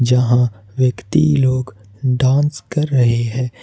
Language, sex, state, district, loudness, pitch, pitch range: Hindi, male, Jharkhand, Ranchi, -17 LUFS, 125 Hz, 120-135 Hz